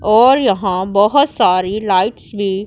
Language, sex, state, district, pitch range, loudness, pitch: Hindi, female, Punjab, Pathankot, 185-220 Hz, -14 LUFS, 200 Hz